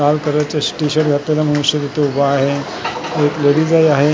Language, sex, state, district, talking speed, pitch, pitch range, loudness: Marathi, male, Maharashtra, Mumbai Suburban, 200 wpm, 150 Hz, 145-155 Hz, -16 LUFS